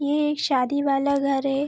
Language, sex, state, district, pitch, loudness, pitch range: Hindi, female, Bihar, Araria, 280 Hz, -23 LUFS, 275-285 Hz